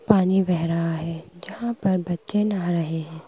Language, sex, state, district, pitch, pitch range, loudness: Hindi, female, Madhya Pradesh, Bhopal, 175 Hz, 165-195 Hz, -24 LUFS